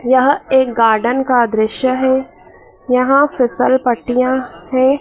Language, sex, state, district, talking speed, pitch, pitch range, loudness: Hindi, female, Madhya Pradesh, Dhar, 120 wpm, 255 Hz, 245-260 Hz, -14 LUFS